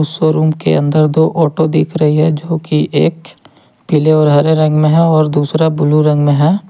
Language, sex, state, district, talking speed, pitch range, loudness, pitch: Hindi, male, Jharkhand, Ranchi, 205 wpm, 150-160 Hz, -12 LUFS, 155 Hz